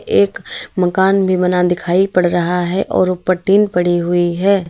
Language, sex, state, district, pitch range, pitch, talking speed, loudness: Hindi, female, Uttar Pradesh, Lalitpur, 175-195 Hz, 180 Hz, 180 wpm, -15 LUFS